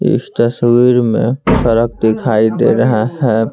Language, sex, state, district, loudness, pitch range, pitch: Hindi, male, Bihar, Patna, -13 LUFS, 110-125 Hz, 120 Hz